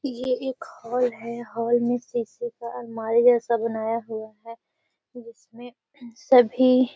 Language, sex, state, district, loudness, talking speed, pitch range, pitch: Magahi, female, Bihar, Gaya, -24 LUFS, 140 wpm, 230-250 Hz, 240 Hz